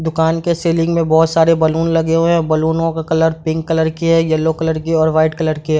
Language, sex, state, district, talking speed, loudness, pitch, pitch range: Hindi, male, Bihar, Madhepura, 260 wpm, -15 LUFS, 160 Hz, 160-165 Hz